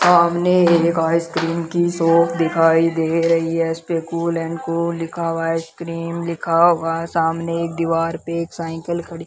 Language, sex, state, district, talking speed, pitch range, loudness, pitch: Hindi, male, Rajasthan, Bikaner, 190 wpm, 165-170 Hz, -19 LUFS, 165 Hz